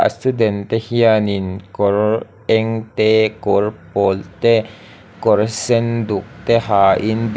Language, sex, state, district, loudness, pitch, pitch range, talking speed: Mizo, male, Mizoram, Aizawl, -17 LUFS, 110 Hz, 100-115 Hz, 130 wpm